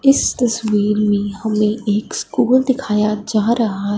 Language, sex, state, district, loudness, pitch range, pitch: Hindi, female, Punjab, Fazilka, -17 LUFS, 210-235 Hz, 215 Hz